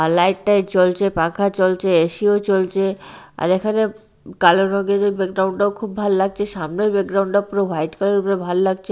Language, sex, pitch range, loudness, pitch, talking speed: Bengali, female, 185-200 Hz, -18 LUFS, 195 Hz, 175 wpm